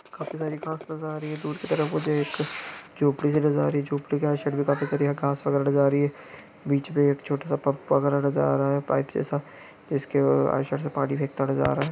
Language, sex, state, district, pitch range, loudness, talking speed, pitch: Hindi, male, Jharkhand, Sahebganj, 140-150 Hz, -26 LUFS, 275 wpm, 145 Hz